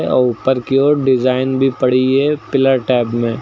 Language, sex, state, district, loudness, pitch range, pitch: Hindi, male, Uttar Pradesh, Lucknow, -15 LUFS, 125-135 Hz, 130 Hz